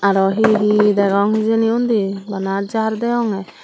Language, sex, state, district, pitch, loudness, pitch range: Chakma, female, Tripura, Dhalai, 210 Hz, -17 LUFS, 195-225 Hz